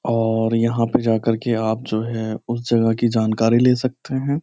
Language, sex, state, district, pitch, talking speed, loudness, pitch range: Hindi, male, Uttar Pradesh, Jyotiba Phule Nagar, 115 Hz, 205 wpm, -20 LUFS, 110-120 Hz